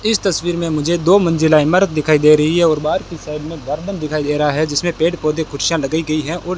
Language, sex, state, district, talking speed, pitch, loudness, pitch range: Hindi, male, Rajasthan, Bikaner, 275 wpm, 160 Hz, -16 LUFS, 150-175 Hz